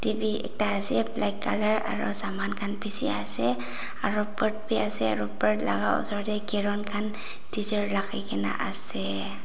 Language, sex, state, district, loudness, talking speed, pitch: Nagamese, female, Nagaland, Dimapur, -23 LUFS, 165 wpm, 205 Hz